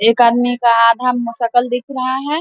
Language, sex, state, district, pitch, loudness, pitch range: Hindi, female, Bihar, Vaishali, 245 Hz, -15 LUFS, 235-255 Hz